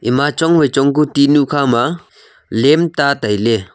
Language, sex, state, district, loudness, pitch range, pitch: Wancho, male, Arunachal Pradesh, Longding, -14 LUFS, 120-150 Hz, 140 Hz